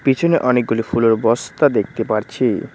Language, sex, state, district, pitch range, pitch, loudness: Bengali, male, West Bengal, Cooch Behar, 115-130 Hz, 120 Hz, -17 LUFS